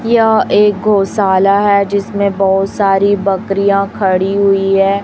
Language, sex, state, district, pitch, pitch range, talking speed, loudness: Hindi, female, Chhattisgarh, Raipur, 200 Hz, 195-205 Hz, 130 wpm, -12 LUFS